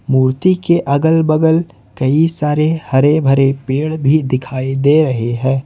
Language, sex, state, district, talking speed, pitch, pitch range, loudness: Hindi, male, Jharkhand, Ranchi, 150 wpm, 145 Hz, 135-160 Hz, -14 LUFS